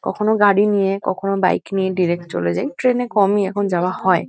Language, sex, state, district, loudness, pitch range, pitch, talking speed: Bengali, female, West Bengal, North 24 Parganas, -18 LUFS, 185-205 Hz, 195 Hz, 225 wpm